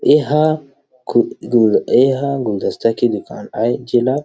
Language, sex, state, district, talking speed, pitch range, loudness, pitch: Chhattisgarhi, male, Chhattisgarh, Rajnandgaon, 100 wpm, 120-140 Hz, -16 LUFS, 130 Hz